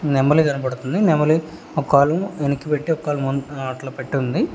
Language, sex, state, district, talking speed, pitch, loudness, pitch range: Telugu, male, Telangana, Hyderabad, 160 wpm, 145 Hz, -20 LUFS, 135-155 Hz